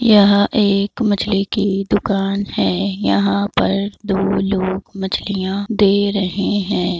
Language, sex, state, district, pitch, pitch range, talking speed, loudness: Hindi, female, Bihar, Madhepura, 200 Hz, 195-205 Hz, 120 wpm, -17 LUFS